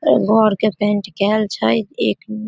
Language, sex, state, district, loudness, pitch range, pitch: Maithili, female, Bihar, Samastipur, -17 LUFS, 200-215 Hz, 205 Hz